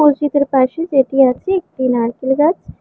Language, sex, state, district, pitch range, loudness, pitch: Bengali, female, Karnataka, Bangalore, 260-300 Hz, -15 LUFS, 275 Hz